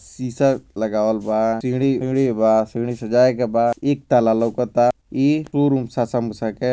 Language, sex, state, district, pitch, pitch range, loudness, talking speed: Bhojpuri, male, Bihar, Gopalganj, 120 Hz, 115-130 Hz, -19 LUFS, 150 wpm